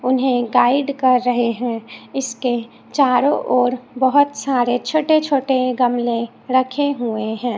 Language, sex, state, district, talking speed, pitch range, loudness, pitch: Hindi, female, Chhattisgarh, Raipur, 125 wpm, 240-270 Hz, -18 LUFS, 250 Hz